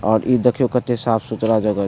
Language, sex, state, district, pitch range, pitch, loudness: Maithili, male, Bihar, Supaul, 110-125 Hz, 115 Hz, -18 LUFS